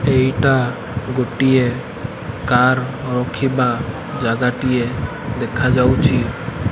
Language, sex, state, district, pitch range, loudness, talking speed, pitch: Odia, male, Odisha, Malkangiri, 120-130 Hz, -18 LUFS, 55 wpm, 125 Hz